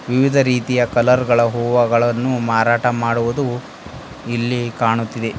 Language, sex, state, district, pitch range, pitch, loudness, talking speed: Kannada, male, Karnataka, Bidar, 115-125 Hz, 120 Hz, -17 LUFS, 100 wpm